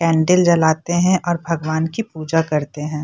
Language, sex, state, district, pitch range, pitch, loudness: Hindi, female, Bihar, Purnia, 155-175 Hz, 165 Hz, -18 LUFS